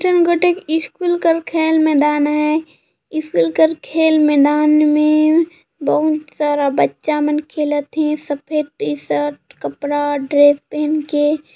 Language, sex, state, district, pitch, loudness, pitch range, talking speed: Chhattisgarhi, female, Chhattisgarh, Jashpur, 300 Hz, -16 LUFS, 290-320 Hz, 115 wpm